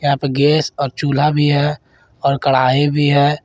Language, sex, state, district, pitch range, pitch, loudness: Hindi, male, Jharkhand, Garhwa, 135-145 Hz, 145 Hz, -15 LUFS